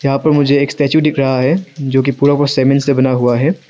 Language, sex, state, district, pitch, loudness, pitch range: Hindi, male, Arunachal Pradesh, Lower Dibang Valley, 140 Hz, -13 LUFS, 135-145 Hz